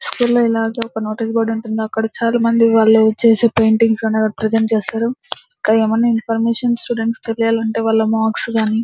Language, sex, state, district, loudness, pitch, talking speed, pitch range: Telugu, female, Andhra Pradesh, Anantapur, -16 LUFS, 225 Hz, 150 wpm, 220-230 Hz